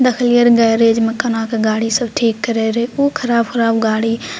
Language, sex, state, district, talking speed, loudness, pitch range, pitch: Maithili, female, Bihar, Purnia, 175 wpm, -15 LUFS, 225-240 Hz, 230 Hz